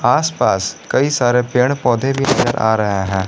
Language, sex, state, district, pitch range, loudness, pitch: Hindi, male, Jharkhand, Garhwa, 110-135 Hz, -16 LUFS, 125 Hz